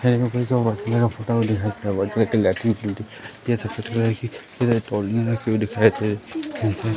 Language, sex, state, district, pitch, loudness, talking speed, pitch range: Hindi, male, Madhya Pradesh, Katni, 110 Hz, -22 LUFS, 85 wpm, 105-115 Hz